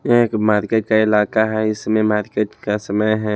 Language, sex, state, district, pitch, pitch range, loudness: Hindi, male, Himachal Pradesh, Shimla, 110 Hz, 105-110 Hz, -18 LUFS